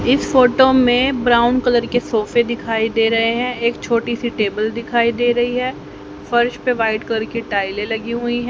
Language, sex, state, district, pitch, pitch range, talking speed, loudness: Hindi, female, Haryana, Rohtak, 235 Hz, 225-245 Hz, 200 wpm, -17 LUFS